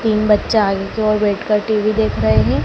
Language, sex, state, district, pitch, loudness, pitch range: Hindi, male, Madhya Pradesh, Dhar, 210 Hz, -16 LUFS, 195-215 Hz